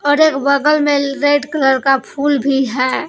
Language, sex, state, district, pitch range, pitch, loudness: Hindi, female, Jharkhand, Palamu, 270-290 Hz, 280 Hz, -14 LUFS